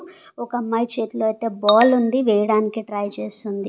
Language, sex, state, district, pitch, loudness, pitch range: Telugu, female, Andhra Pradesh, Sri Satya Sai, 220 Hz, -20 LUFS, 210-240 Hz